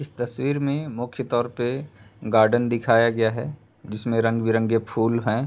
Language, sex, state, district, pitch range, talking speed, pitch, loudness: Hindi, male, Uttar Pradesh, Hamirpur, 115-125 Hz, 155 wpm, 115 Hz, -23 LUFS